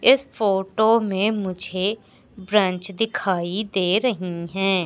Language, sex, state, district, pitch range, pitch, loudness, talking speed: Hindi, female, Madhya Pradesh, Umaria, 185-215 Hz, 195 Hz, -22 LUFS, 110 wpm